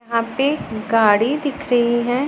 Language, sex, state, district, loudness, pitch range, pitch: Hindi, female, Punjab, Pathankot, -18 LUFS, 230-275 Hz, 240 Hz